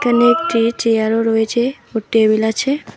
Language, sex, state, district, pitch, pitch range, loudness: Bengali, female, West Bengal, Alipurduar, 230 Hz, 225-245 Hz, -16 LUFS